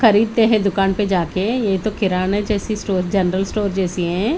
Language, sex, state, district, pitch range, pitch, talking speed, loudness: Hindi, female, Haryana, Charkhi Dadri, 190-215 Hz, 200 Hz, 205 wpm, -18 LUFS